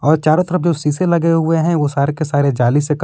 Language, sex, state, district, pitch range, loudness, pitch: Hindi, male, Jharkhand, Palamu, 145-165 Hz, -15 LUFS, 155 Hz